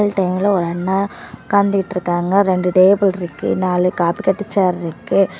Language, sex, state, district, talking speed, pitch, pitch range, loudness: Tamil, female, Tamil Nadu, Namakkal, 145 wpm, 190 Hz, 180-200 Hz, -17 LUFS